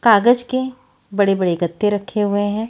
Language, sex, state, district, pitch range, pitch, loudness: Hindi, female, Haryana, Charkhi Dadri, 200-240 Hz, 210 Hz, -17 LUFS